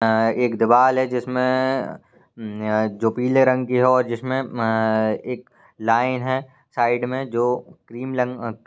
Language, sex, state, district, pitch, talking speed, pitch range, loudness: Hindi, male, Maharashtra, Nagpur, 125 Hz, 145 wpm, 115-130 Hz, -21 LUFS